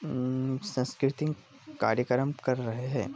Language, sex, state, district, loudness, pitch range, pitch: Hindi, male, Bihar, Gopalganj, -30 LUFS, 125-140 Hz, 130 Hz